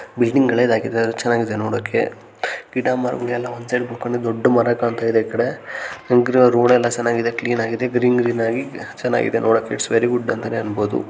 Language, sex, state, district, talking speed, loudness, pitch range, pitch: Kannada, male, Karnataka, Gulbarga, 170 wpm, -19 LUFS, 115-125 Hz, 120 Hz